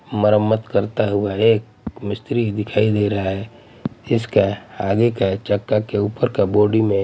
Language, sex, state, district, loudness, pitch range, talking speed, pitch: Hindi, male, Punjab, Pathankot, -19 LUFS, 100-115 Hz, 155 wpm, 105 Hz